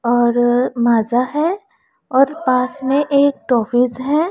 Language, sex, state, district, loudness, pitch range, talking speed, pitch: Hindi, female, Punjab, Pathankot, -16 LUFS, 240-285 Hz, 125 wpm, 255 Hz